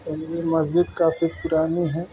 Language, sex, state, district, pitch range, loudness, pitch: Hindi, female, Bihar, Bhagalpur, 160-170 Hz, -23 LUFS, 165 Hz